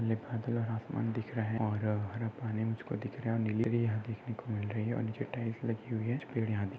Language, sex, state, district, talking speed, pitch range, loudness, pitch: Hindi, male, Maharashtra, Chandrapur, 220 wpm, 110-115 Hz, -35 LUFS, 115 Hz